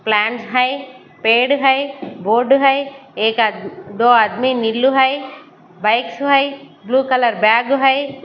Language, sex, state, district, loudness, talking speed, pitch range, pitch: Hindi, female, Haryana, Charkhi Dadri, -15 LUFS, 130 wpm, 225-275 Hz, 255 Hz